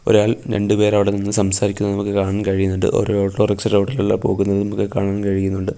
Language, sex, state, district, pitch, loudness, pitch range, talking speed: Malayalam, male, Kerala, Kollam, 100 Hz, -18 LUFS, 100-105 Hz, 165 wpm